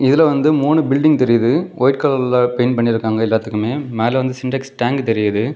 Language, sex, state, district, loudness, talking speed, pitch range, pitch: Tamil, male, Tamil Nadu, Kanyakumari, -16 LUFS, 130 wpm, 115-140 Hz, 130 Hz